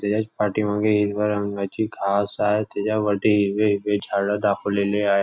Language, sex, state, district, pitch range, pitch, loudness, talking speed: Marathi, male, Maharashtra, Nagpur, 100-105 Hz, 105 Hz, -22 LUFS, 150 wpm